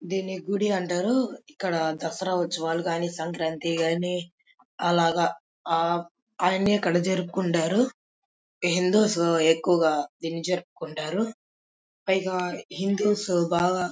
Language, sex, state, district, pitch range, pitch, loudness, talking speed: Telugu, male, Andhra Pradesh, Krishna, 165-190 Hz, 180 Hz, -26 LUFS, 85 wpm